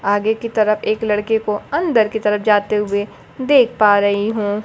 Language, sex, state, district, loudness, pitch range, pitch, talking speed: Hindi, female, Bihar, Kaimur, -17 LUFS, 205-220 Hz, 210 Hz, 195 wpm